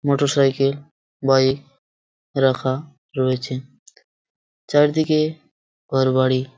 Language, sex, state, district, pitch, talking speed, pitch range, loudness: Bengali, male, West Bengal, Purulia, 135 Hz, 55 wpm, 130-145 Hz, -20 LUFS